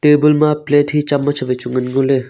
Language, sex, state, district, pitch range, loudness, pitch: Wancho, male, Arunachal Pradesh, Longding, 130-150 Hz, -15 LUFS, 145 Hz